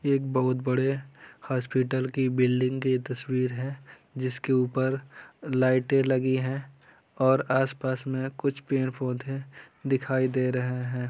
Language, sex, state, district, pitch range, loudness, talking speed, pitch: Hindi, male, Bihar, Lakhisarai, 130-135 Hz, -27 LUFS, 135 wpm, 130 Hz